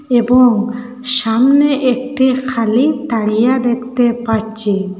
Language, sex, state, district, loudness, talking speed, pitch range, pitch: Bengali, female, Assam, Hailakandi, -14 LUFS, 85 wpm, 225-255 Hz, 245 Hz